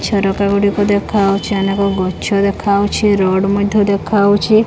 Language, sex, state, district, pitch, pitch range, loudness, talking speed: Odia, female, Odisha, Khordha, 200 Hz, 195-205 Hz, -14 LUFS, 115 wpm